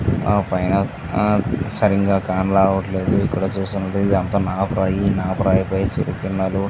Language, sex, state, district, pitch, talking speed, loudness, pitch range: Telugu, male, Andhra Pradesh, Visakhapatnam, 95 Hz, 90 wpm, -19 LUFS, 95-100 Hz